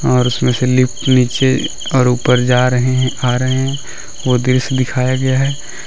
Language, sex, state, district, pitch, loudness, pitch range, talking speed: Hindi, male, Jharkhand, Deoghar, 130 Hz, -15 LUFS, 125-130 Hz, 185 wpm